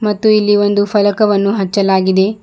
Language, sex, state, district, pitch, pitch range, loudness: Kannada, female, Karnataka, Bidar, 205 Hz, 200-210 Hz, -13 LUFS